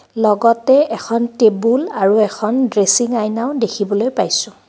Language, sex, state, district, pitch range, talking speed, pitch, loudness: Assamese, female, Assam, Kamrup Metropolitan, 215-240 Hz, 115 wpm, 225 Hz, -15 LUFS